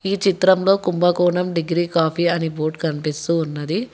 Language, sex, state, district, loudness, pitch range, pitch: Telugu, female, Telangana, Hyderabad, -19 LUFS, 160-185 Hz, 170 Hz